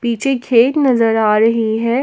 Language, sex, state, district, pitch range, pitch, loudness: Hindi, female, Jharkhand, Palamu, 225-255 Hz, 235 Hz, -14 LUFS